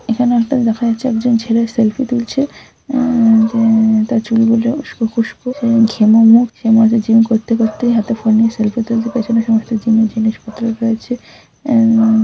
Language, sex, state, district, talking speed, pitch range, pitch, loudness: Bengali, female, West Bengal, Malda, 145 wpm, 225-235 Hz, 230 Hz, -13 LUFS